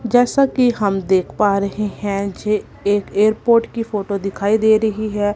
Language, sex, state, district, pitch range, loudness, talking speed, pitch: Hindi, female, Punjab, Kapurthala, 200-220 Hz, -18 LUFS, 180 wpm, 210 Hz